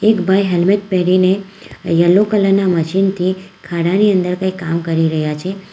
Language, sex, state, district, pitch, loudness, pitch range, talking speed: Gujarati, female, Gujarat, Valsad, 185 Hz, -15 LUFS, 175-195 Hz, 165 wpm